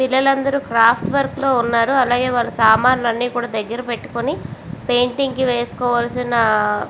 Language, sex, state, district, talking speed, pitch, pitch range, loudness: Telugu, female, Andhra Pradesh, Visakhapatnam, 150 wpm, 245 Hz, 235-260 Hz, -17 LUFS